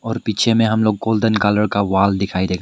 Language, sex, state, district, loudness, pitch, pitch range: Hindi, male, Meghalaya, West Garo Hills, -17 LUFS, 105 Hz, 100-110 Hz